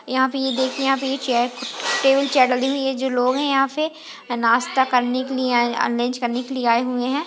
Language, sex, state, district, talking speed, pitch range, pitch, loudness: Hindi, female, Maharashtra, Aurangabad, 245 wpm, 245-270 Hz, 260 Hz, -20 LUFS